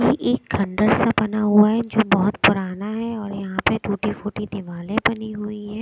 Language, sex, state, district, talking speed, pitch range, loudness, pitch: Hindi, female, Bihar, West Champaran, 205 wpm, 200-220 Hz, -21 LUFS, 210 Hz